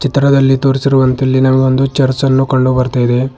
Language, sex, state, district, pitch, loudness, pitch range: Kannada, male, Karnataka, Bidar, 130 Hz, -12 LUFS, 130-135 Hz